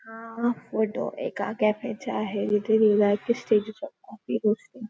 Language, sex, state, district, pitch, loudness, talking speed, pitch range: Marathi, female, Maharashtra, Nagpur, 220 Hz, -26 LUFS, 135 wpm, 210-235 Hz